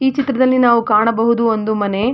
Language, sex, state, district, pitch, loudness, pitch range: Kannada, female, Karnataka, Mysore, 235 Hz, -15 LUFS, 215-255 Hz